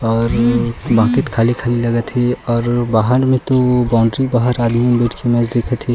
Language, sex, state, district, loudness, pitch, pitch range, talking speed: Chhattisgarhi, male, Chhattisgarh, Sukma, -15 LUFS, 120 Hz, 115-125 Hz, 190 wpm